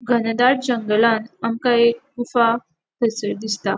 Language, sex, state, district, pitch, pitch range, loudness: Konkani, female, Goa, North and South Goa, 230 Hz, 220-240 Hz, -19 LUFS